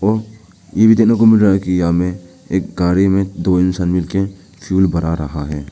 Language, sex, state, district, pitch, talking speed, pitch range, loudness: Hindi, male, Arunachal Pradesh, Papum Pare, 95 Hz, 210 wpm, 90-95 Hz, -15 LUFS